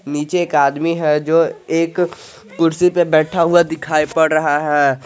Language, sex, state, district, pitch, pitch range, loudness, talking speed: Hindi, male, Jharkhand, Garhwa, 160 Hz, 150-170 Hz, -16 LUFS, 165 wpm